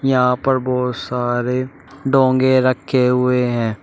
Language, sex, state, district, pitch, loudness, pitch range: Hindi, male, Uttar Pradesh, Shamli, 125 Hz, -17 LUFS, 125-130 Hz